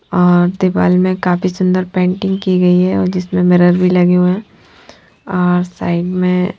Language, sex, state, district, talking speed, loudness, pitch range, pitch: Hindi, female, Haryana, Jhajjar, 175 wpm, -13 LUFS, 180-185 Hz, 180 Hz